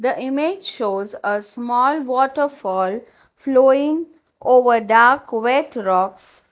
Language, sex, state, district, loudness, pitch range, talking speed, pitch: English, female, Gujarat, Valsad, -18 LUFS, 220-280 Hz, 100 wpm, 250 Hz